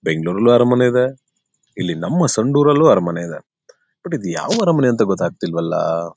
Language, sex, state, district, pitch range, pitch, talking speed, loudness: Kannada, male, Karnataka, Bellary, 85-140 Hz, 120 Hz, 165 wpm, -17 LUFS